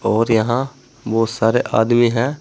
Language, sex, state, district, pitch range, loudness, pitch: Hindi, male, Uttar Pradesh, Saharanpur, 115-125 Hz, -17 LUFS, 115 Hz